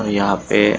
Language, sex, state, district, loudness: Hindi, male, Maharashtra, Nagpur, -18 LUFS